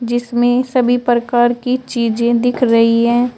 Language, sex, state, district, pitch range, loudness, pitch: Hindi, female, Uttar Pradesh, Shamli, 235-245 Hz, -14 LUFS, 240 Hz